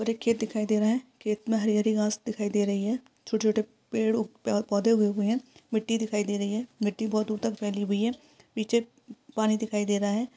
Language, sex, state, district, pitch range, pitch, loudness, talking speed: Hindi, female, Uttarakhand, Uttarkashi, 210-230 Hz, 220 Hz, -28 LUFS, 245 wpm